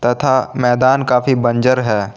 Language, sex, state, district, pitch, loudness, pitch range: Hindi, male, Jharkhand, Garhwa, 125 Hz, -14 LUFS, 120-130 Hz